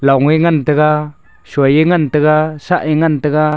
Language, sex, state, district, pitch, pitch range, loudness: Wancho, male, Arunachal Pradesh, Longding, 150 Hz, 150-155 Hz, -13 LUFS